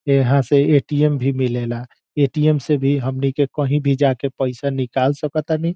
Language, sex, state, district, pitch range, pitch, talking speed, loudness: Bhojpuri, male, Bihar, Saran, 135-150 Hz, 140 Hz, 190 wpm, -18 LUFS